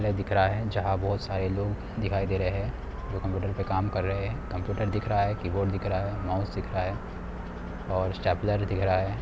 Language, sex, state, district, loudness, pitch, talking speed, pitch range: Hindi, male, Bihar, Sitamarhi, -29 LUFS, 95 Hz, 240 wpm, 95-100 Hz